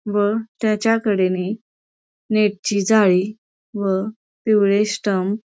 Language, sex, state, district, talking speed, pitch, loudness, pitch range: Marathi, female, Maharashtra, Pune, 100 wpm, 210 Hz, -19 LUFS, 200-220 Hz